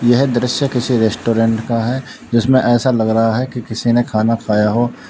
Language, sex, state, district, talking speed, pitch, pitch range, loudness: Hindi, male, Uttar Pradesh, Lalitpur, 200 wpm, 120 Hz, 115-125 Hz, -16 LUFS